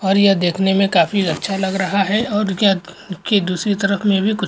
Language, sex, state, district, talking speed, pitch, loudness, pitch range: Hindi, male, Uttarakhand, Uttarkashi, 240 wpm, 195 Hz, -17 LUFS, 190-200 Hz